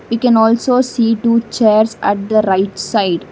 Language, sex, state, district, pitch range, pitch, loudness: English, female, Karnataka, Bangalore, 205-230 Hz, 225 Hz, -14 LUFS